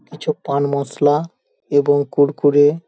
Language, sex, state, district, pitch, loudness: Bengali, male, West Bengal, Paschim Medinipur, 145 Hz, -17 LUFS